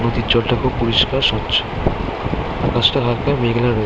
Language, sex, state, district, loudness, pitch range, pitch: Bengali, male, West Bengal, Kolkata, -17 LUFS, 115-125 Hz, 120 Hz